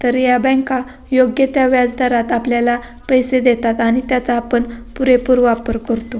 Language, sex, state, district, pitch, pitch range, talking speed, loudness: Marathi, female, Maharashtra, Pune, 245 Hz, 235-255 Hz, 145 wpm, -15 LUFS